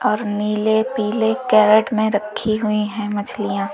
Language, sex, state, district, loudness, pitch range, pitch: Hindi, female, Uttar Pradesh, Lalitpur, -18 LUFS, 210-220 Hz, 215 Hz